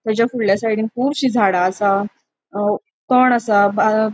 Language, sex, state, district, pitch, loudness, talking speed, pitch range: Konkani, female, Goa, North and South Goa, 215 Hz, -17 LUFS, 160 wpm, 200-235 Hz